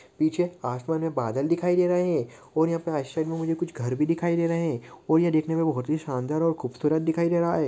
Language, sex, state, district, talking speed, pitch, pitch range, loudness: Hindi, male, Chhattisgarh, Korba, 250 wpm, 160 Hz, 150-170 Hz, -26 LUFS